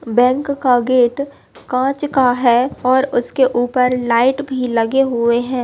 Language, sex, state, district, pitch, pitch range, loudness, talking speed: Hindi, female, Bihar, Bhagalpur, 250 Hz, 245-265 Hz, -16 LUFS, 150 wpm